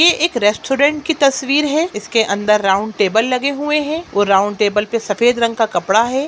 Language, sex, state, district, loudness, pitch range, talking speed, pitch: Hindi, female, Bihar, Sitamarhi, -15 LUFS, 210-285 Hz, 210 wpm, 230 Hz